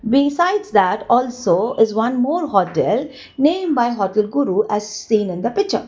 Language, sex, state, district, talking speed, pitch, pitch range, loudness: English, female, Gujarat, Valsad, 165 wpm, 250 Hz, 220-310 Hz, -18 LUFS